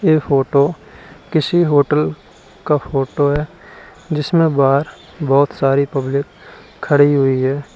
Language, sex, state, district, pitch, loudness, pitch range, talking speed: Hindi, male, Uttar Pradesh, Lalitpur, 145 Hz, -16 LUFS, 135-150 Hz, 110 wpm